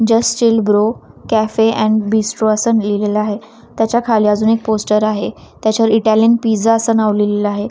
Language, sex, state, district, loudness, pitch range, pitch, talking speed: Marathi, female, Maharashtra, Washim, -14 LUFS, 210-225 Hz, 220 Hz, 170 wpm